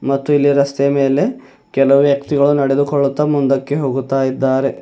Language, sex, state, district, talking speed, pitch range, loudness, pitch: Kannada, male, Karnataka, Bidar, 125 wpm, 135-145 Hz, -15 LUFS, 140 Hz